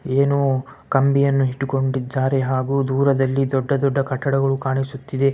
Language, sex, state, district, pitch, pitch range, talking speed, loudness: Kannada, male, Karnataka, Bellary, 135 Hz, 130-140 Hz, 90 wpm, -20 LUFS